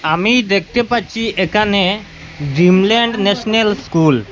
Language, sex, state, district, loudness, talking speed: Bengali, male, Assam, Hailakandi, -14 LUFS, 110 wpm